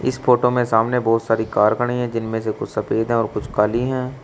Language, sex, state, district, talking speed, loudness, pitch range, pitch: Hindi, male, Uttar Pradesh, Shamli, 240 wpm, -19 LUFS, 110-125 Hz, 115 Hz